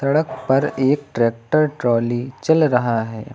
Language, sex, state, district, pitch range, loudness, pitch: Hindi, female, Uttar Pradesh, Lucknow, 120-150 Hz, -19 LUFS, 130 Hz